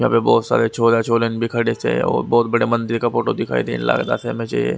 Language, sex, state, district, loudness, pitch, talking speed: Hindi, male, Haryana, Rohtak, -18 LUFS, 115 Hz, 265 wpm